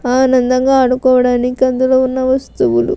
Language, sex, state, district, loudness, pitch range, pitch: Telugu, female, Andhra Pradesh, Krishna, -13 LUFS, 250-260 Hz, 255 Hz